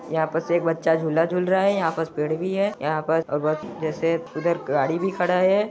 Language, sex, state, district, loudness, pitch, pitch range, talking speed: Hindi, male, Chhattisgarh, Sarguja, -23 LUFS, 165 Hz, 160-180 Hz, 265 wpm